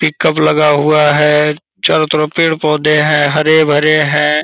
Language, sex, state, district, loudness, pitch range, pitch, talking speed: Hindi, male, Bihar, Purnia, -11 LUFS, 150-155 Hz, 150 Hz, 150 wpm